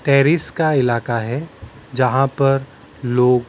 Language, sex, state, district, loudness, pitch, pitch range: Hindi, male, Maharashtra, Mumbai Suburban, -18 LUFS, 135 Hz, 120-140 Hz